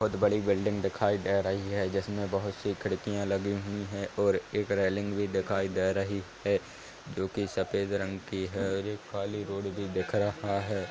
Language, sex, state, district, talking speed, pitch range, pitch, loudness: Hindi, male, Bihar, Lakhisarai, 200 wpm, 95-100 Hz, 100 Hz, -31 LUFS